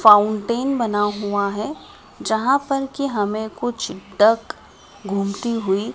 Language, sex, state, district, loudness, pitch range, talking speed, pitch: Hindi, female, Madhya Pradesh, Dhar, -21 LUFS, 205-245 Hz, 120 wpm, 215 Hz